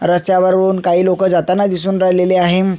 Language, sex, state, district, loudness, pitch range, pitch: Marathi, male, Maharashtra, Sindhudurg, -13 LUFS, 180-190 Hz, 185 Hz